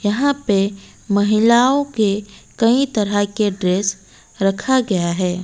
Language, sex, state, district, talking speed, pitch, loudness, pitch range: Hindi, female, Odisha, Malkangiri, 120 wpm, 205 Hz, -18 LUFS, 195-235 Hz